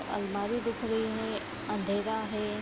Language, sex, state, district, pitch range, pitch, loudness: Hindi, female, Bihar, Vaishali, 205-225 Hz, 215 Hz, -33 LUFS